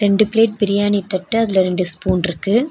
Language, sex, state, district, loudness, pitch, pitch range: Tamil, female, Tamil Nadu, Nilgiris, -16 LUFS, 200 Hz, 185-215 Hz